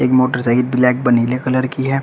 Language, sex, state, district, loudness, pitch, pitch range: Hindi, male, Uttar Pradesh, Shamli, -16 LUFS, 125 Hz, 125-130 Hz